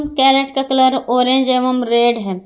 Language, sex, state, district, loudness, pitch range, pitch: Hindi, female, Jharkhand, Garhwa, -13 LUFS, 240-270 Hz, 255 Hz